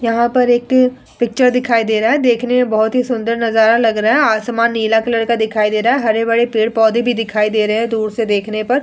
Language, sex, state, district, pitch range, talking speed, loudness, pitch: Hindi, female, Bihar, Vaishali, 220-240 Hz, 260 wpm, -14 LUFS, 230 Hz